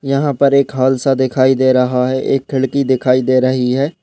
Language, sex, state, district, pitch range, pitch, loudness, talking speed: Hindi, male, Uttar Pradesh, Budaun, 130-140 Hz, 130 Hz, -14 LUFS, 165 wpm